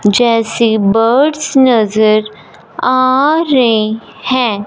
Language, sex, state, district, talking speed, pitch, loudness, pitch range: Hindi, male, Punjab, Fazilka, 75 wpm, 230 Hz, -11 LUFS, 220-260 Hz